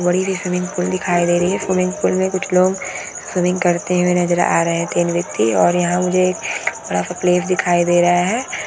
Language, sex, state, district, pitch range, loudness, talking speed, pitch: Hindi, female, Bihar, Madhepura, 175-185 Hz, -17 LUFS, 235 wpm, 180 Hz